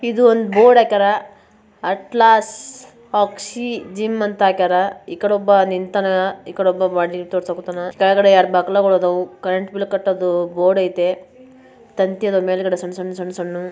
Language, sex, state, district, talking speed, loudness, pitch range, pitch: Kannada, male, Karnataka, Bijapur, 115 wpm, -17 LUFS, 185-210 Hz, 195 Hz